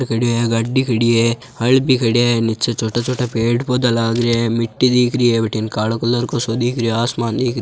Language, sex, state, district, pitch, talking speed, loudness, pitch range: Marwari, male, Rajasthan, Churu, 120 Hz, 230 wpm, -17 LUFS, 115-125 Hz